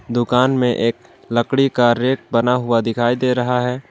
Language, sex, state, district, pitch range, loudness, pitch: Hindi, male, Jharkhand, Palamu, 120-125 Hz, -17 LUFS, 125 Hz